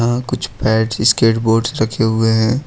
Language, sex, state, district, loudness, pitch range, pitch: Hindi, male, Jharkhand, Ranchi, -15 LUFS, 110-120 Hz, 115 Hz